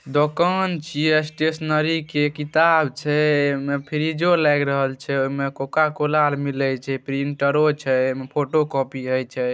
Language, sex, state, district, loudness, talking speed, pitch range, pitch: Maithili, male, Bihar, Saharsa, -21 LUFS, 140 wpm, 135-155 Hz, 145 Hz